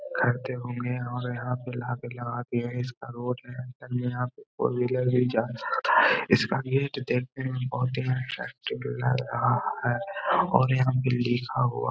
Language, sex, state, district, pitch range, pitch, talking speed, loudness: Hindi, male, Bihar, Gaya, 120-130 Hz, 125 Hz, 145 wpm, -27 LUFS